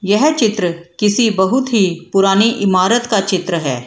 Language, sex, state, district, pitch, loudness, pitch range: Hindi, female, Bihar, Gaya, 195 Hz, -14 LUFS, 185-225 Hz